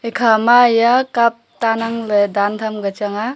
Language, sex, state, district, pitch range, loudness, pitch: Wancho, female, Arunachal Pradesh, Longding, 210-235 Hz, -15 LUFS, 230 Hz